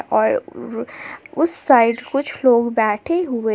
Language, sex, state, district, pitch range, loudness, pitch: Hindi, female, Jharkhand, Palamu, 230-310 Hz, -18 LUFS, 255 Hz